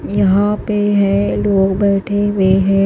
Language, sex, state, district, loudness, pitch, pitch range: Hindi, female, Maharashtra, Washim, -14 LUFS, 195 Hz, 195-205 Hz